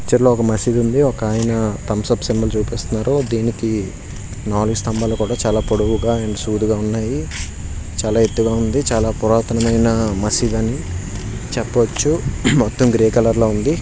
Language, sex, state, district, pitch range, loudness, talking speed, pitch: Telugu, male, Andhra Pradesh, Srikakulam, 105-115 Hz, -18 LUFS, 135 wpm, 110 Hz